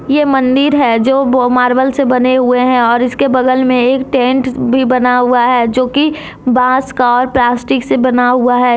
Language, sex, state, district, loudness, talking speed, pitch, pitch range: Hindi, female, Jharkhand, Deoghar, -11 LUFS, 205 wpm, 255 Hz, 245-265 Hz